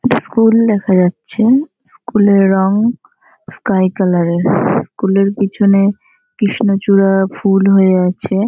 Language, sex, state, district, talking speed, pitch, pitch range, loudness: Bengali, female, West Bengal, North 24 Parganas, 125 wpm, 195 Hz, 190-220 Hz, -13 LUFS